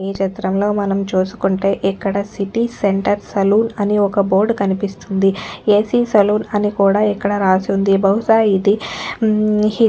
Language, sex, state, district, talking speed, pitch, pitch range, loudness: Telugu, female, Telangana, Nalgonda, 140 wpm, 200 Hz, 195-210 Hz, -16 LUFS